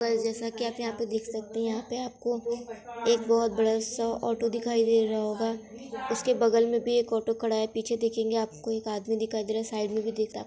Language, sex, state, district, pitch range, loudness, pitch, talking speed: Hindi, female, Bihar, Muzaffarpur, 225-235 Hz, -29 LUFS, 225 Hz, 230 wpm